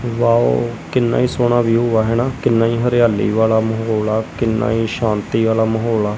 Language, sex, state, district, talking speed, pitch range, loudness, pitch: Punjabi, male, Punjab, Kapurthala, 185 wpm, 110-120 Hz, -16 LUFS, 115 Hz